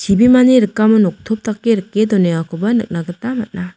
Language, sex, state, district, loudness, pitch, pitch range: Garo, female, Meghalaya, South Garo Hills, -14 LUFS, 215 Hz, 185-230 Hz